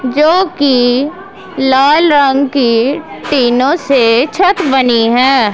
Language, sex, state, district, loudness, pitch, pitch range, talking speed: Hindi, female, Punjab, Pathankot, -10 LUFS, 275 Hz, 250-310 Hz, 110 wpm